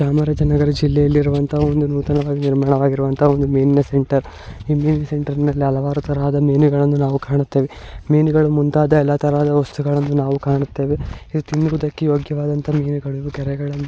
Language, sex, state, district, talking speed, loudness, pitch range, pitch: Kannada, female, Karnataka, Chamarajanagar, 120 wpm, -18 LUFS, 140-150 Hz, 145 Hz